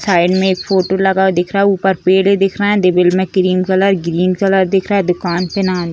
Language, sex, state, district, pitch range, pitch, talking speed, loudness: Hindi, female, Bihar, Vaishali, 180-195 Hz, 190 Hz, 275 wpm, -14 LUFS